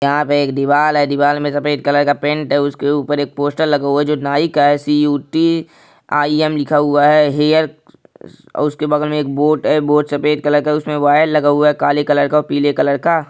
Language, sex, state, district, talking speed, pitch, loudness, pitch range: Maithili, male, Bihar, Supaul, 215 wpm, 145 Hz, -15 LUFS, 145-150 Hz